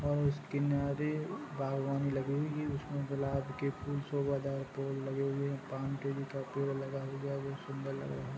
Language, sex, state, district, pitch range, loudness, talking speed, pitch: Hindi, male, Bihar, Sitamarhi, 135-140 Hz, -37 LUFS, 200 wpm, 140 Hz